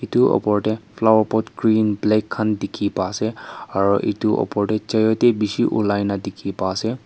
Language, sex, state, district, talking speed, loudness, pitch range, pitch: Nagamese, male, Nagaland, Kohima, 180 wpm, -20 LUFS, 100-110 Hz, 110 Hz